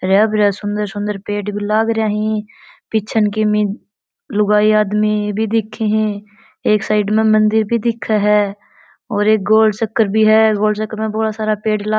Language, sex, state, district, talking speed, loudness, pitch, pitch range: Marwari, female, Rajasthan, Churu, 185 wpm, -16 LUFS, 215 Hz, 210-220 Hz